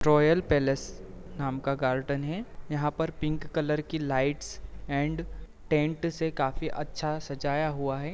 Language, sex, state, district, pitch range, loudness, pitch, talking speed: Hindi, male, Uttar Pradesh, Deoria, 140-155 Hz, -30 LUFS, 150 Hz, 145 wpm